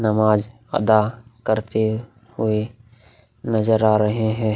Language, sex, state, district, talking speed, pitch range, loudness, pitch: Hindi, male, Bihar, Vaishali, 105 wpm, 110-115 Hz, -20 LUFS, 110 Hz